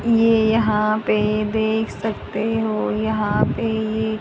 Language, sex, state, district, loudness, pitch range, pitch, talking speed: Hindi, female, Haryana, Rohtak, -20 LUFS, 215-220 Hz, 220 Hz, 130 wpm